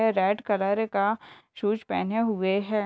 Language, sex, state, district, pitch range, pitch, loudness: Hindi, female, Bihar, Gopalganj, 200-220 Hz, 210 Hz, -26 LUFS